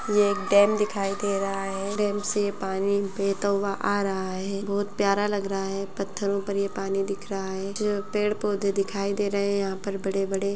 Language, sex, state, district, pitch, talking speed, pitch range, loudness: Hindi, male, Chhattisgarh, Bastar, 200 Hz, 210 wpm, 195-205 Hz, -26 LUFS